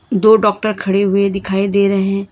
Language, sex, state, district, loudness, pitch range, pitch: Hindi, female, Karnataka, Bangalore, -14 LUFS, 195-205 Hz, 200 Hz